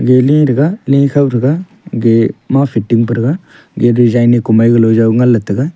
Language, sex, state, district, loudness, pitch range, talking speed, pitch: Wancho, male, Arunachal Pradesh, Longding, -11 LUFS, 115-140 Hz, 200 wpm, 120 Hz